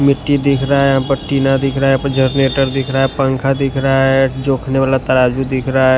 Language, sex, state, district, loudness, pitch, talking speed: Hindi, male, Punjab, Fazilka, -14 LUFS, 135 Hz, 260 wpm